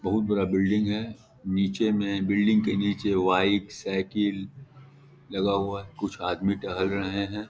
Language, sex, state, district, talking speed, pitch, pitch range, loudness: Hindi, male, Bihar, Muzaffarpur, 150 wpm, 100 Hz, 95-105 Hz, -26 LUFS